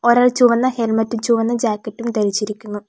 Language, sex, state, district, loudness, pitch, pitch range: Malayalam, female, Kerala, Kollam, -18 LUFS, 230 Hz, 215-240 Hz